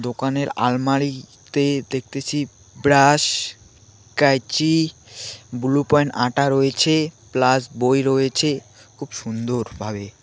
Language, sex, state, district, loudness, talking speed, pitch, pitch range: Bengali, male, West Bengal, Alipurduar, -20 LUFS, 90 wpm, 130 Hz, 115-140 Hz